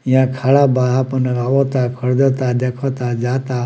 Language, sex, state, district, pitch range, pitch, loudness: Bhojpuri, male, Bihar, Muzaffarpur, 125-135 Hz, 130 Hz, -16 LUFS